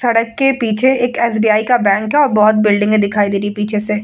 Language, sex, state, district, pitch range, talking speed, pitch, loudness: Hindi, female, Bihar, Vaishali, 210-240 Hz, 255 wpm, 215 Hz, -14 LUFS